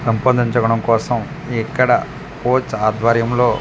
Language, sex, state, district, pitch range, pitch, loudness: Telugu, male, Andhra Pradesh, Manyam, 115-125 Hz, 120 Hz, -17 LUFS